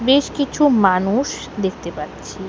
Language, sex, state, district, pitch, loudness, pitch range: Bengali, female, West Bengal, Alipurduar, 200 Hz, -18 LUFS, 190-275 Hz